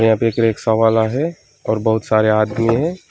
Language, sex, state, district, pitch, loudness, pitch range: Hindi, male, West Bengal, Alipurduar, 110 Hz, -17 LUFS, 110-115 Hz